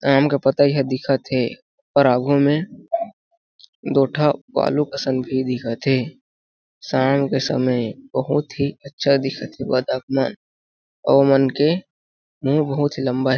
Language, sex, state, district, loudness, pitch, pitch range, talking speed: Chhattisgarhi, male, Chhattisgarh, Jashpur, -20 LUFS, 135 Hz, 130-145 Hz, 130 wpm